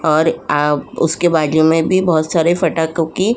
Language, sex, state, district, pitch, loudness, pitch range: Hindi, female, Uttar Pradesh, Jyotiba Phule Nagar, 160 Hz, -15 LUFS, 155-170 Hz